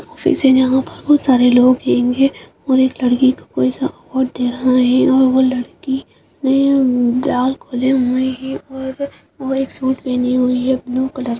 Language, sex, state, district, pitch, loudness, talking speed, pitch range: Hindi, female, Uttarakhand, Uttarkashi, 260 Hz, -16 LUFS, 185 wpm, 250-265 Hz